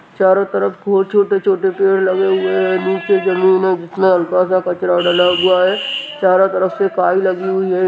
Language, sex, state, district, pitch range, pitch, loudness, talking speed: Hindi, male, Uttar Pradesh, Hamirpur, 180-195 Hz, 185 Hz, -15 LUFS, 215 wpm